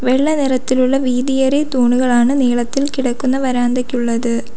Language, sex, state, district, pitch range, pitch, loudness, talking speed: Malayalam, female, Kerala, Kollam, 245-270 Hz, 255 Hz, -16 LUFS, 105 wpm